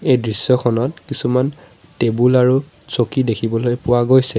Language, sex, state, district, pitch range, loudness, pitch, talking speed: Assamese, male, Assam, Sonitpur, 120-130 Hz, -17 LUFS, 125 Hz, 125 wpm